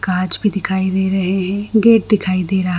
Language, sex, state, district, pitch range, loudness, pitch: Hindi, female, Chhattisgarh, Bilaspur, 185-205 Hz, -16 LUFS, 190 Hz